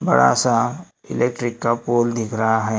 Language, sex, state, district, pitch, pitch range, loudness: Hindi, male, Maharashtra, Gondia, 115 Hz, 110-120 Hz, -19 LUFS